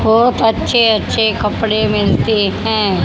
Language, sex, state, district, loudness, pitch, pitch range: Hindi, female, Haryana, Charkhi Dadri, -14 LUFS, 220 Hz, 215-230 Hz